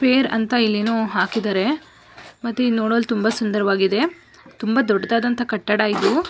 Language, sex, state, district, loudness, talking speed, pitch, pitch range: Kannada, female, Karnataka, Mysore, -20 LUFS, 135 wpm, 225 Hz, 210-245 Hz